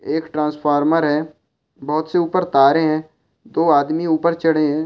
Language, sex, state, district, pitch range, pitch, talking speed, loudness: Hindi, male, Rajasthan, Churu, 150-160 Hz, 155 Hz, 160 wpm, -18 LUFS